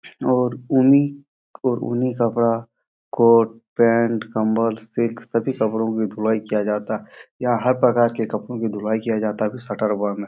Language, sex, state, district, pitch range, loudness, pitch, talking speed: Hindi, male, Bihar, Jahanabad, 110-120 Hz, -21 LUFS, 115 Hz, 170 wpm